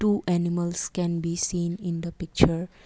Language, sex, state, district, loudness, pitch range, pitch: English, female, Assam, Kamrup Metropolitan, -26 LUFS, 170-175 Hz, 175 Hz